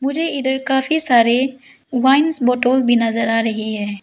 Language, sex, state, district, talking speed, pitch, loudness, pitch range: Hindi, female, Arunachal Pradesh, Lower Dibang Valley, 165 wpm, 255 Hz, -16 LUFS, 230-270 Hz